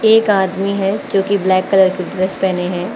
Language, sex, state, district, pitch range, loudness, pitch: Hindi, female, Uttar Pradesh, Lucknow, 185-200 Hz, -15 LUFS, 190 Hz